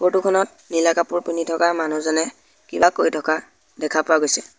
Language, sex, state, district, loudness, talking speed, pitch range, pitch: Assamese, male, Assam, Sonitpur, -20 LUFS, 170 wpm, 155-170 Hz, 165 Hz